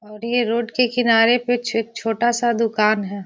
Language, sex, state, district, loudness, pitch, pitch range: Hindi, female, Bihar, Gaya, -19 LUFS, 230 Hz, 225-240 Hz